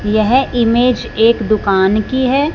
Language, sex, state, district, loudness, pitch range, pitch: Hindi, female, Punjab, Fazilka, -13 LUFS, 215-255 Hz, 230 Hz